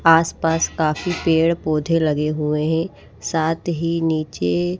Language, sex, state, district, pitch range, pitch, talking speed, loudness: Hindi, female, Odisha, Malkangiri, 150-165 Hz, 160 Hz, 125 wpm, -20 LUFS